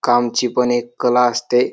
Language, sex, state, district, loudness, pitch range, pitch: Marathi, male, Maharashtra, Dhule, -17 LUFS, 120-125 Hz, 120 Hz